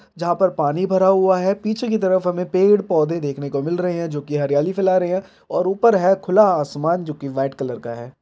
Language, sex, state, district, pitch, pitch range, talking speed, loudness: Hindi, male, Bihar, Jahanabad, 180 Hz, 145-190 Hz, 250 wpm, -19 LUFS